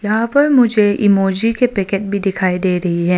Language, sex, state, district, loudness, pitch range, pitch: Hindi, female, Arunachal Pradesh, Longding, -15 LUFS, 190-225 Hz, 200 Hz